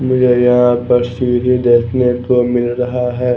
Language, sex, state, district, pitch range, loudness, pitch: Hindi, male, Bihar, West Champaran, 120-125 Hz, -13 LUFS, 125 Hz